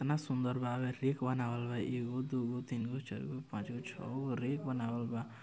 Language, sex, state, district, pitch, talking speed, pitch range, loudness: Bhojpuri, male, Bihar, Gopalganj, 125 Hz, 175 wpm, 120-130 Hz, -38 LUFS